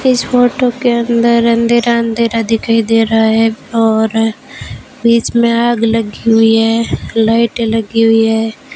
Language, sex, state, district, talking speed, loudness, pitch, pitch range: Hindi, female, Rajasthan, Bikaner, 145 wpm, -12 LUFS, 230 Hz, 225-235 Hz